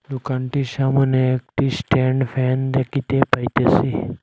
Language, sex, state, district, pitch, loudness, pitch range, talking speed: Bengali, male, Assam, Hailakandi, 135 Hz, -20 LUFS, 130-135 Hz, 100 wpm